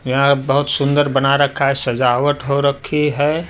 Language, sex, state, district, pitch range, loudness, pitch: Hindi, male, Delhi, New Delhi, 135-145 Hz, -16 LUFS, 140 Hz